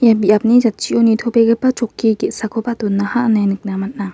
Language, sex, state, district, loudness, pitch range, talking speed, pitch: Garo, female, Meghalaya, West Garo Hills, -15 LUFS, 205-235 Hz, 145 wpm, 225 Hz